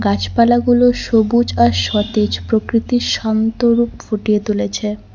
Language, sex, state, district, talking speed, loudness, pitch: Bengali, female, West Bengal, Cooch Behar, 105 wpm, -15 LUFS, 220 Hz